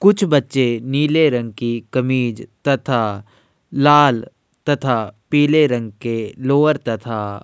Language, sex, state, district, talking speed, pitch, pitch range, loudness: Hindi, male, Uttar Pradesh, Jyotiba Phule Nagar, 120 wpm, 125 Hz, 115-145 Hz, -18 LUFS